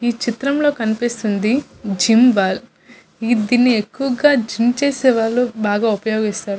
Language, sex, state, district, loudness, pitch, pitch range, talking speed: Telugu, female, Andhra Pradesh, Visakhapatnam, -17 LUFS, 235 Hz, 215-250 Hz, 100 wpm